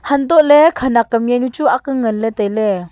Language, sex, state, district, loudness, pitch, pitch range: Wancho, female, Arunachal Pradesh, Longding, -14 LUFS, 245 Hz, 225-280 Hz